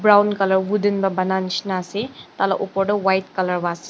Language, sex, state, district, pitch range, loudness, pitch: Nagamese, female, Nagaland, Dimapur, 185-205 Hz, -20 LUFS, 195 Hz